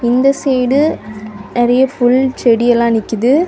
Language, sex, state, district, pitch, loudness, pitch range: Tamil, female, Tamil Nadu, Kanyakumari, 245 Hz, -13 LUFS, 235-265 Hz